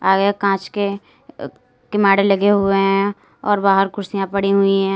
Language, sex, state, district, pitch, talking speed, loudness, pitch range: Hindi, female, Uttar Pradesh, Lalitpur, 195 Hz, 170 wpm, -17 LUFS, 195-200 Hz